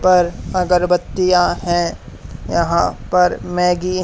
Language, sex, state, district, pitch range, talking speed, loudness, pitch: Hindi, male, Haryana, Charkhi Dadri, 180-185 Hz, 105 wpm, -17 LUFS, 180 Hz